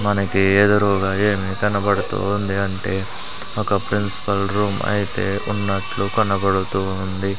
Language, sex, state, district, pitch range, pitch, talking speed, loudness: Telugu, male, Andhra Pradesh, Sri Satya Sai, 95-100 Hz, 100 Hz, 105 wpm, -20 LUFS